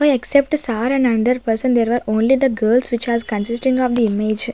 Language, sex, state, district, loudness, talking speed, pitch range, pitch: English, female, Maharashtra, Gondia, -17 LUFS, 240 wpm, 225-255 Hz, 245 Hz